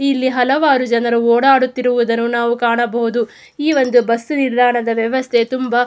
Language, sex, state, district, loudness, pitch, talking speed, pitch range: Kannada, female, Karnataka, Mysore, -15 LUFS, 245 Hz, 135 wpm, 235-260 Hz